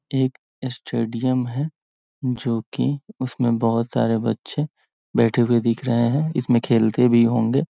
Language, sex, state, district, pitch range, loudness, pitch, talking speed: Hindi, male, Bihar, Muzaffarpur, 115-130 Hz, -21 LUFS, 120 Hz, 150 wpm